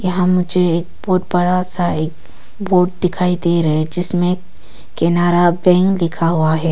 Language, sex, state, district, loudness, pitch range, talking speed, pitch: Hindi, female, Arunachal Pradesh, Papum Pare, -16 LUFS, 170-180 Hz, 150 wpm, 180 Hz